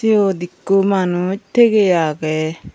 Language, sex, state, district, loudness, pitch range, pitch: Chakma, female, Tripura, Unakoti, -16 LUFS, 165-200 Hz, 185 Hz